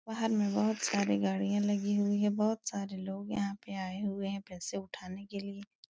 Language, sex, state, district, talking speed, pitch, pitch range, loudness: Hindi, female, Uttar Pradesh, Etah, 205 wpm, 200 Hz, 190-205 Hz, -34 LUFS